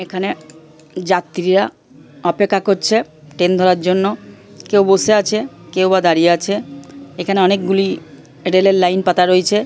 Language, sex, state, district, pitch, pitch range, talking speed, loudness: Bengali, female, West Bengal, Purulia, 185 Hz, 175-195 Hz, 125 wpm, -15 LUFS